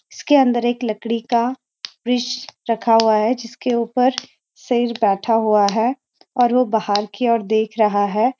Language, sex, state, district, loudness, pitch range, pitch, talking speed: Hindi, female, Uttarakhand, Uttarkashi, -18 LUFS, 220-245 Hz, 235 Hz, 155 wpm